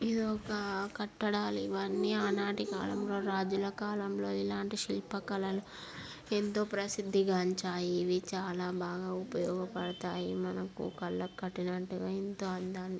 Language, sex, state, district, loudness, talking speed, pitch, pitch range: Telugu, female, Andhra Pradesh, Guntur, -35 LUFS, 95 wpm, 190 Hz, 180-200 Hz